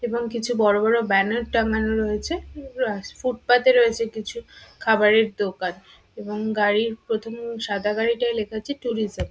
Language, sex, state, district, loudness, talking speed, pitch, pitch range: Bengali, female, West Bengal, Purulia, -22 LUFS, 140 wpm, 225 Hz, 210-235 Hz